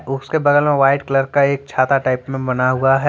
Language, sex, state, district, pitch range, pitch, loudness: Hindi, male, Jharkhand, Deoghar, 130-140 Hz, 135 Hz, -16 LUFS